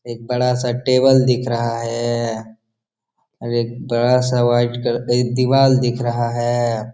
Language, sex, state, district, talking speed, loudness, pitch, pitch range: Hindi, male, Jharkhand, Jamtara, 145 wpm, -18 LUFS, 120 Hz, 120-125 Hz